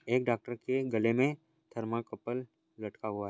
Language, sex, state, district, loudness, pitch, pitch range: Hindi, male, Maharashtra, Sindhudurg, -34 LUFS, 120 Hz, 110-130 Hz